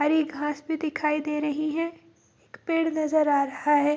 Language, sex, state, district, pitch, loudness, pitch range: Hindi, female, Bihar, Bhagalpur, 305 Hz, -26 LUFS, 295-315 Hz